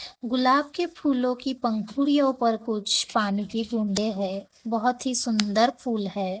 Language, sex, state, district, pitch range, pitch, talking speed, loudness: Hindi, male, Maharashtra, Gondia, 210-255 Hz, 230 Hz, 150 wpm, -25 LUFS